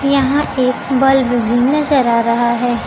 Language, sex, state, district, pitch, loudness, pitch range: Hindi, female, Bihar, Kaimur, 255 Hz, -14 LUFS, 240-275 Hz